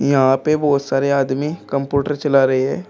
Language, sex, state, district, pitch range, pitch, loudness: Hindi, male, Uttar Pradesh, Shamli, 135-145 Hz, 140 Hz, -17 LUFS